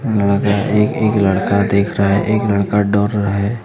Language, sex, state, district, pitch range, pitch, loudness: Hindi, male, Jharkhand, Deoghar, 100-105 Hz, 100 Hz, -15 LUFS